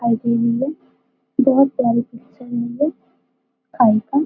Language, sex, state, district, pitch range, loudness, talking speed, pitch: Hindi, female, Bihar, Gopalganj, 235-275 Hz, -18 LUFS, 70 wpm, 245 Hz